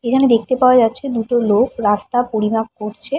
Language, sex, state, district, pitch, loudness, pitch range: Bengali, female, West Bengal, Paschim Medinipur, 230 Hz, -16 LUFS, 215-255 Hz